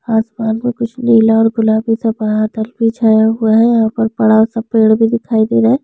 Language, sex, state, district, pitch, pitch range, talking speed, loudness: Hindi, female, Chhattisgarh, Sukma, 225 Hz, 220-230 Hz, 215 wpm, -13 LUFS